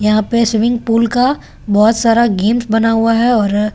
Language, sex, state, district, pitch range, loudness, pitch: Hindi, female, Delhi, New Delhi, 215-235 Hz, -13 LUFS, 225 Hz